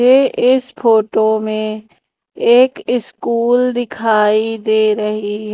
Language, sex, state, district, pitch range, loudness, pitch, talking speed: Hindi, female, Madhya Pradesh, Umaria, 215-245 Hz, -15 LUFS, 220 Hz, 95 wpm